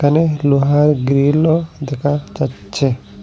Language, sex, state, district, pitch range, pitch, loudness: Bengali, male, Assam, Hailakandi, 140-150 Hz, 145 Hz, -16 LUFS